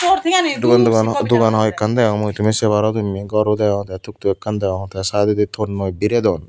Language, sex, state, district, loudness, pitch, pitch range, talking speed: Chakma, female, Tripura, Unakoti, -17 LUFS, 105 Hz, 100-115 Hz, 205 wpm